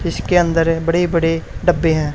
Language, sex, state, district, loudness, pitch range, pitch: Hindi, male, Haryana, Charkhi Dadri, -16 LUFS, 165-175 Hz, 165 Hz